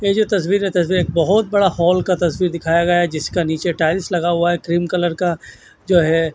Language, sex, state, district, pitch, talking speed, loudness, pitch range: Hindi, male, Maharashtra, Washim, 175 Hz, 235 wpm, -17 LUFS, 170-185 Hz